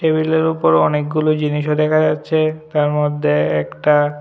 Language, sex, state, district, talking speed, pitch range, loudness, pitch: Bengali, male, Tripura, West Tripura, 130 wpm, 150-155 Hz, -16 LUFS, 150 Hz